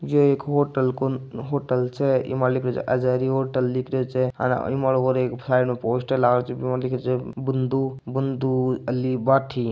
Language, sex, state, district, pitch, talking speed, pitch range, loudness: Marwari, male, Rajasthan, Nagaur, 130 Hz, 175 wpm, 125-135 Hz, -23 LUFS